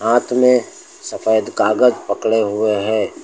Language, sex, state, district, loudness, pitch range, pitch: Hindi, male, Uttar Pradesh, Lucknow, -16 LUFS, 110-120 Hz, 110 Hz